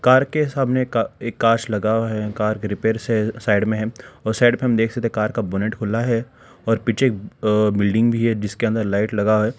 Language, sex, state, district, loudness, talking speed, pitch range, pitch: Hindi, male, Telangana, Hyderabad, -20 LUFS, 230 wpm, 105-120 Hz, 110 Hz